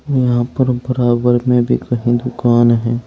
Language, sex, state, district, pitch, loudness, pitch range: Hindi, male, Uttar Pradesh, Saharanpur, 120 Hz, -15 LUFS, 120-125 Hz